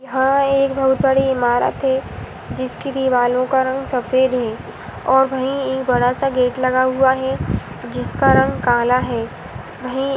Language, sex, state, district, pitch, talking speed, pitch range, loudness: Hindi, female, Karnataka, Gulbarga, 260 Hz, 125 wpm, 250-265 Hz, -18 LUFS